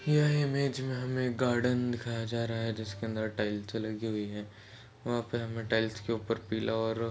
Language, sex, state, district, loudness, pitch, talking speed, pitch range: Hindi, male, Chhattisgarh, Kabirdham, -33 LUFS, 115 Hz, 200 wpm, 110-120 Hz